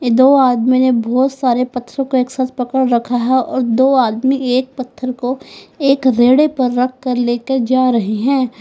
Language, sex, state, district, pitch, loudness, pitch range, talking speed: Hindi, female, Uttar Pradesh, Lalitpur, 255 Hz, -15 LUFS, 245-260 Hz, 180 wpm